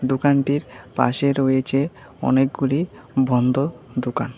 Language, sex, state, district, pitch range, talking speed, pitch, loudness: Bengali, male, Tripura, West Tripura, 125-140 Hz, 80 wpm, 135 Hz, -21 LUFS